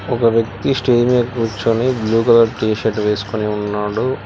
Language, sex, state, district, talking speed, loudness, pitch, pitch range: Telugu, male, Telangana, Hyderabad, 155 wpm, -16 LUFS, 115 Hz, 105-120 Hz